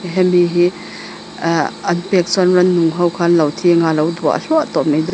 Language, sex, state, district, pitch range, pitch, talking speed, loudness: Mizo, female, Mizoram, Aizawl, 165-180 Hz, 175 Hz, 210 wpm, -15 LUFS